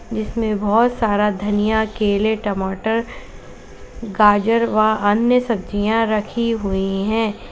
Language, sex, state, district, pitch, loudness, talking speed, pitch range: Hindi, female, Uttar Pradesh, Lalitpur, 215 Hz, -18 LUFS, 105 wpm, 205-225 Hz